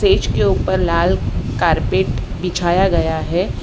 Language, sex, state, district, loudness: Hindi, female, Gujarat, Valsad, -17 LUFS